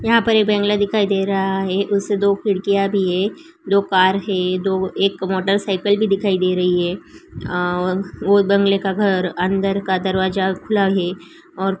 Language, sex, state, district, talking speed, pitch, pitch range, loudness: Hindi, female, Uttarakhand, Uttarkashi, 185 wpm, 195 Hz, 190-200 Hz, -18 LUFS